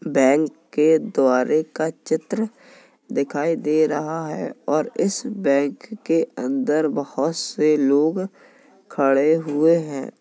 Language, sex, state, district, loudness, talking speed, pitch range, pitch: Hindi, male, Uttar Pradesh, Jalaun, -21 LUFS, 120 wpm, 150-185 Hz, 155 Hz